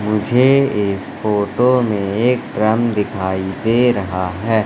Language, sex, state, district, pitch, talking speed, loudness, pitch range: Hindi, male, Madhya Pradesh, Katni, 105 Hz, 130 wpm, -17 LUFS, 100-120 Hz